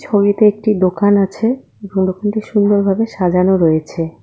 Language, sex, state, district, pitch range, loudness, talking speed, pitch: Bengali, female, West Bengal, Cooch Behar, 185-210 Hz, -15 LUFS, 130 wpm, 200 Hz